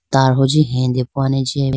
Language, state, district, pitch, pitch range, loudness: Idu Mishmi, Arunachal Pradesh, Lower Dibang Valley, 135 Hz, 130-135 Hz, -16 LUFS